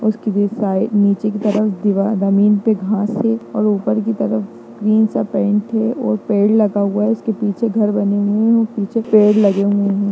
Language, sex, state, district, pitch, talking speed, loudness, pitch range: Hindi, female, Bihar, Jamui, 210 Hz, 205 wpm, -16 LUFS, 200-220 Hz